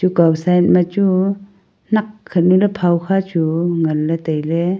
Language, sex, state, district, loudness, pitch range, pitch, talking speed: Wancho, female, Arunachal Pradesh, Longding, -16 LUFS, 170-195 Hz, 180 Hz, 160 wpm